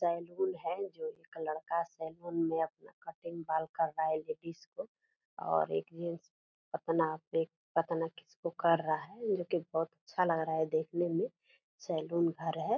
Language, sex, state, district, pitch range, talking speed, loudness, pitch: Hindi, female, Bihar, Purnia, 160-170 Hz, 165 wpm, -36 LUFS, 165 Hz